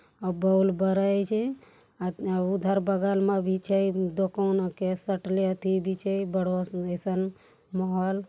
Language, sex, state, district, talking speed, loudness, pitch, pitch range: Angika, female, Bihar, Bhagalpur, 135 wpm, -27 LUFS, 190 Hz, 185-195 Hz